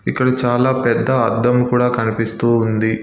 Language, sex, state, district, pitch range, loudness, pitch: Telugu, male, Telangana, Hyderabad, 115-125 Hz, -16 LUFS, 120 Hz